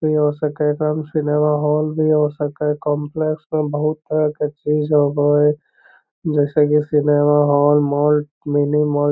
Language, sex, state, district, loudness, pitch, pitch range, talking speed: Magahi, male, Bihar, Lakhisarai, -18 LUFS, 150 Hz, 145-150 Hz, 165 wpm